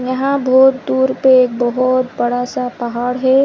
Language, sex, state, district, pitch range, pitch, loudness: Hindi, female, Chhattisgarh, Bilaspur, 245-265 Hz, 255 Hz, -14 LUFS